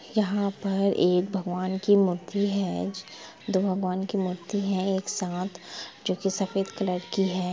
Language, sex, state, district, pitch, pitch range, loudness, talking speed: Hindi, female, Bihar, Sitamarhi, 190 Hz, 185-200 Hz, -27 LUFS, 160 wpm